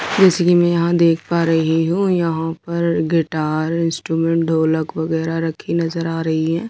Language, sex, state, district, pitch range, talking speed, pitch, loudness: Hindi, female, Delhi, New Delhi, 160-170 Hz, 170 wpm, 165 Hz, -18 LUFS